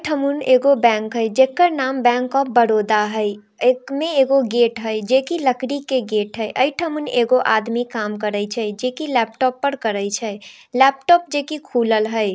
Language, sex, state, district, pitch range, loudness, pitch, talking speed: Hindi, female, Bihar, Darbhanga, 220-275 Hz, -18 LUFS, 245 Hz, 205 wpm